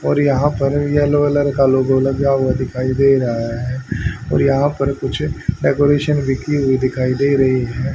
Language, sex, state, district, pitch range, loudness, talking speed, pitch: Hindi, male, Haryana, Rohtak, 130-145 Hz, -16 LUFS, 190 wpm, 135 Hz